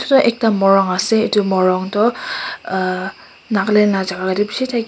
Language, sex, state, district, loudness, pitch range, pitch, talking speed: Nagamese, male, Nagaland, Kohima, -16 LUFS, 190-235 Hz, 205 Hz, 145 wpm